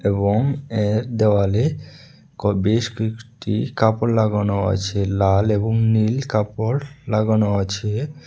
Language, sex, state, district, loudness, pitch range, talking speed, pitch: Bengali, male, Tripura, West Tripura, -20 LUFS, 100-115 Hz, 110 wpm, 110 Hz